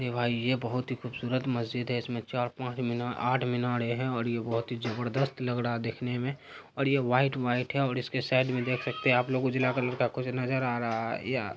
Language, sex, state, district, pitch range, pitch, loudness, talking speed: Hindi, male, Bihar, Araria, 120-130 Hz, 125 Hz, -30 LUFS, 230 wpm